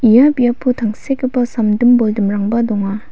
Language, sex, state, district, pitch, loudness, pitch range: Garo, female, Meghalaya, West Garo Hills, 235 Hz, -15 LUFS, 215-245 Hz